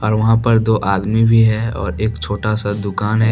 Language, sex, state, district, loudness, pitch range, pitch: Hindi, male, Jharkhand, Deoghar, -16 LUFS, 105-110 Hz, 110 Hz